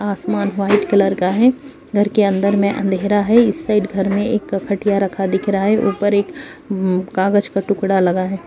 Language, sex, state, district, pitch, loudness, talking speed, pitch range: Hindi, female, Uttar Pradesh, Jalaun, 200 Hz, -17 LUFS, 205 wpm, 195-210 Hz